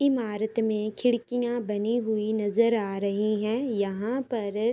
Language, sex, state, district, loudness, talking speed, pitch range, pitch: Hindi, female, Uttar Pradesh, Ghazipur, -27 LUFS, 150 wpm, 210-240 Hz, 220 Hz